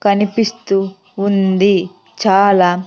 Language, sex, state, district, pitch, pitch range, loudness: Telugu, female, Andhra Pradesh, Sri Satya Sai, 195 Hz, 190-200 Hz, -14 LUFS